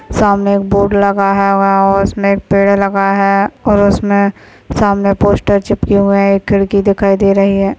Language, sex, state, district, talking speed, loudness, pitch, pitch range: Hindi, female, Maharashtra, Chandrapur, 170 wpm, -11 LUFS, 200 Hz, 195-200 Hz